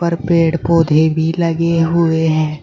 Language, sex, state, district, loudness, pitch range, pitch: Hindi, female, Uttar Pradesh, Shamli, -14 LUFS, 160-170 Hz, 165 Hz